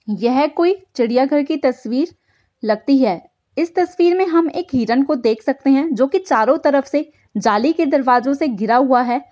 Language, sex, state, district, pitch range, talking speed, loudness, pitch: Hindi, female, Bihar, East Champaran, 245-320 Hz, 185 wpm, -17 LUFS, 275 Hz